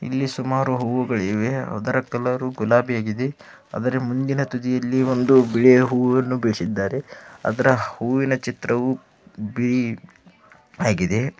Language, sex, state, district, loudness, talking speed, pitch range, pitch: Kannada, male, Karnataka, Dharwad, -21 LUFS, 95 wpm, 115-130 Hz, 125 Hz